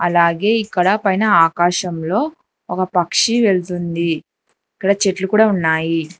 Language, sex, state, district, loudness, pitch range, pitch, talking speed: Telugu, female, Telangana, Hyderabad, -17 LUFS, 170-205 Hz, 180 Hz, 105 wpm